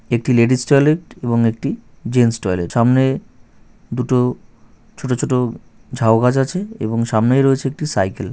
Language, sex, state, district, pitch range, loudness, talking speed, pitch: Bengali, male, West Bengal, North 24 Parganas, 115-135 Hz, -17 LUFS, 145 wpm, 125 Hz